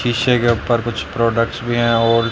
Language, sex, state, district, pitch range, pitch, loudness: Hindi, male, Haryana, Rohtak, 115-120 Hz, 120 Hz, -17 LUFS